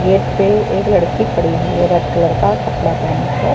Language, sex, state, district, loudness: Hindi, female, Chhattisgarh, Balrampur, -15 LUFS